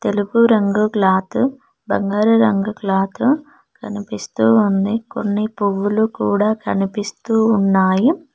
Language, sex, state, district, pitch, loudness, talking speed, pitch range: Telugu, female, Telangana, Mahabubabad, 210 Hz, -17 LUFS, 95 wpm, 195-225 Hz